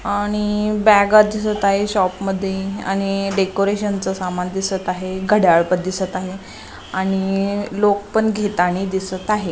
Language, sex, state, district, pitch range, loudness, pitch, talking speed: Marathi, male, Maharashtra, Nagpur, 190-205 Hz, -19 LUFS, 195 Hz, 125 wpm